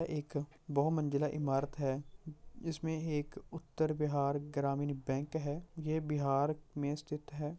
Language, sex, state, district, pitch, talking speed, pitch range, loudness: Hindi, male, Bihar, Purnia, 150 Hz, 135 wpm, 145-155 Hz, -37 LUFS